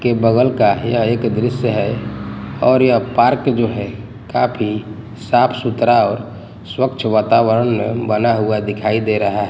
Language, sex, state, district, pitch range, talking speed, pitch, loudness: Hindi, male, Gujarat, Gandhinagar, 110-120 Hz, 150 wpm, 115 Hz, -16 LUFS